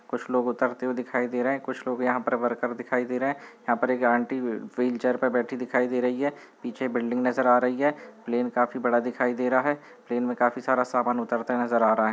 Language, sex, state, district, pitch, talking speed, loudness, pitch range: Hindi, male, Chhattisgarh, Balrampur, 125 Hz, 250 wpm, -26 LUFS, 120-130 Hz